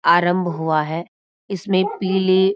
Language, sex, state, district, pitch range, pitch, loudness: Hindi, female, Uttarakhand, Uttarkashi, 170-190 Hz, 185 Hz, -20 LUFS